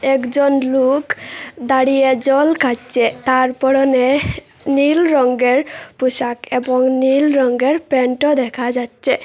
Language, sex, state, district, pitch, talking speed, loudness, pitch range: Bengali, female, Assam, Hailakandi, 265 Hz, 105 wpm, -15 LUFS, 250-275 Hz